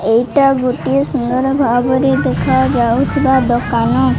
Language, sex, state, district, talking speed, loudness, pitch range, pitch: Odia, female, Odisha, Malkangiri, 85 wpm, -14 LUFS, 240-270 Hz, 250 Hz